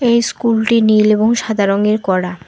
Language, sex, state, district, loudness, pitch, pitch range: Bengali, female, West Bengal, Alipurduar, -14 LUFS, 215 Hz, 200-230 Hz